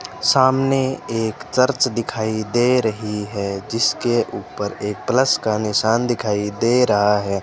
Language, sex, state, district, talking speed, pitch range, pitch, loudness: Hindi, male, Rajasthan, Bikaner, 135 wpm, 105-125 Hz, 110 Hz, -19 LUFS